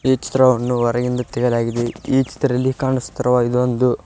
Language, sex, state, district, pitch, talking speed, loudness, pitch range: Kannada, male, Karnataka, Koppal, 125 Hz, 105 wpm, -18 LUFS, 120-130 Hz